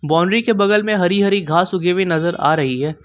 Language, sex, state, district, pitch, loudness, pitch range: Hindi, male, Jharkhand, Ranchi, 180 Hz, -16 LUFS, 160-200 Hz